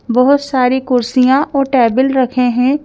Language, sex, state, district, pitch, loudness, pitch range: Hindi, female, Madhya Pradesh, Bhopal, 260 Hz, -13 LUFS, 250-270 Hz